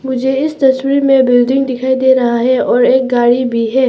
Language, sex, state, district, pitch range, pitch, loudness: Hindi, female, Arunachal Pradesh, Papum Pare, 245-265 Hz, 260 Hz, -12 LUFS